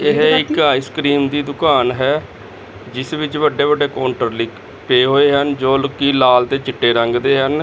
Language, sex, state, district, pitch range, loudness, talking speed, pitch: Punjabi, male, Chandigarh, Chandigarh, 130-145 Hz, -15 LUFS, 175 wpm, 135 Hz